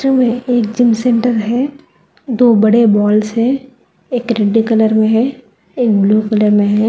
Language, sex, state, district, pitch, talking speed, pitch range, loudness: Hindi, female, Telangana, Hyderabad, 230 Hz, 165 wpm, 215-245 Hz, -13 LUFS